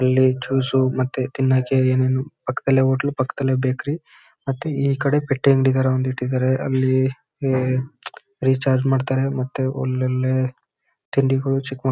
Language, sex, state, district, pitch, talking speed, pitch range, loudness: Kannada, male, Karnataka, Chamarajanagar, 130 Hz, 140 wpm, 130-135 Hz, -21 LUFS